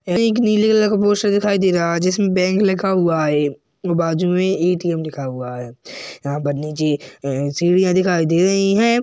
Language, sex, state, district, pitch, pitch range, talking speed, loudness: Hindi, male, Uttar Pradesh, Jalaun, 180 Hz, 150-195 Hz, 200 wpm, -18 LUFS